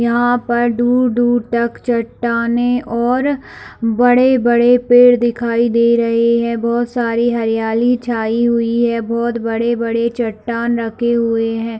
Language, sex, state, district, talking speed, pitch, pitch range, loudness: Hindi, female, Chhattisgarh, Bilaspur, 150 wpm, 235 Hz, 230-240 Hz, -15 LUFS